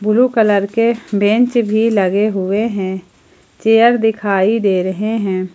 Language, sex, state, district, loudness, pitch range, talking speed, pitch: Hindi, female, Jharkhand, Ranchi, -15 LUFS, 195-225 Hz, 150 wpm, 210 Hz